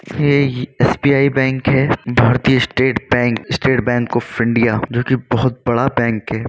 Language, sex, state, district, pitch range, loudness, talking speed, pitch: Hindi, male, Uttar Pradesh, Varanasi, 120-130 Hz, -16 LUFS, 140 wpm, 125 Hz